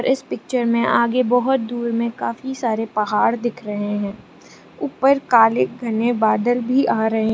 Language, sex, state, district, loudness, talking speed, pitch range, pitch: Hindi, female, Arunachal Pradesh, Lower Dibang Valley, -19 LUFS, 165 wpm, 220-245 Hz, 235 Hz